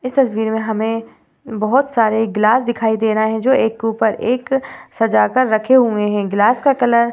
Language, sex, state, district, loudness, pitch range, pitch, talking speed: Hindi, female, Uttar Pradesh, Varanasi, -16 LUFS, 220-250 Hz, 225 Hz, 210 wpm